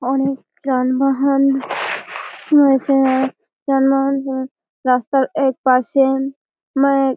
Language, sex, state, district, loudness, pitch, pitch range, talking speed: Bengali, female, West Bengal, Malda, -17 LUFS, 270 Hz, 265-275 Hz, 75 wpm